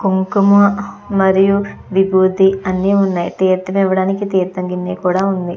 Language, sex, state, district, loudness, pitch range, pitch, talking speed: Telugu, female, Andhra Pradesh, Chittoor, -15 LUFS, 185-195 Hz, 190 Hz, 110 wpm